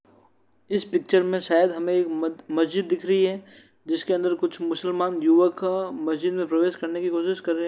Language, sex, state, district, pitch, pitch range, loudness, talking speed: Hindi, male, Uttar Pradesh, Varanasi, 180 Hz, 170-185 Hz, -24 LUFS, 185 wpm